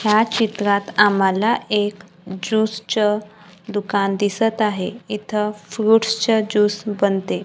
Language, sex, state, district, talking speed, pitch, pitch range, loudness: Marathi, female, Maharashtra, Gondia, 115 wpm, 210 Hz, 205-220 Hz, -19 LUFS